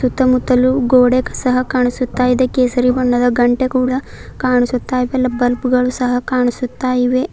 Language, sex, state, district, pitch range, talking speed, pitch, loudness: Kannada, female, Karnataka, Bidar, 250-255 Hz, 130 wpm, 250 Hz, -15 LUFS